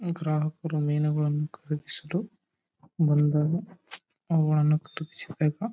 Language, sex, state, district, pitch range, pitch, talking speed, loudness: Kannada, male, Karnataka, Raichur, 150-165 Hz, 155 Hz, 75 wpm, -27 LUFS